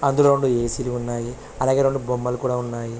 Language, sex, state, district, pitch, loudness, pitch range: Telugu, male, Andhra Pradesh, Krishna, 125 Hz, -22 LUFS, 120-135 Hz